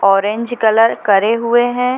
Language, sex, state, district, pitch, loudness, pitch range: Hindi, female, Chhattisgarh, Bilaspur, 225 Hz, -14 LUFS, 210-240 Hz